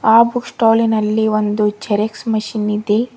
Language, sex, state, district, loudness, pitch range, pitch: Kannada, female, Karnataka, Bidar, -16 LUFS, 210-225 Hz, 220 Hz